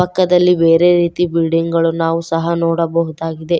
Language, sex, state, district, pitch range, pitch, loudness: Kannada, female, Karnataka, Koppal, 165-175 Hz, 170 Hz, -15 LUFS